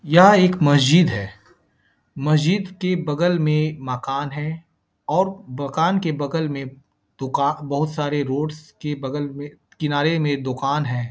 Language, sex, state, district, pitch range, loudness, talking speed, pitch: Hindi, male, Bihar, Bhagalpur, 140-165 Hz, -21 LUFS, 145 wpm, 150 Hz